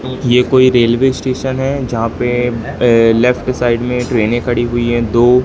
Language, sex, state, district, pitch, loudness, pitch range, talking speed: Hindi, male, Madhya Pradesh, Katni, 125 Hz, -13 LUFS, 120-130 Hz, 175 wpm